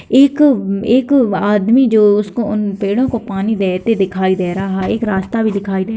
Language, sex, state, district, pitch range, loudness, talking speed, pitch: Hindi, female, Bihar, Kishanganj, 195-230 Hz, -14 LUFS, 190 wpm, 210 Hz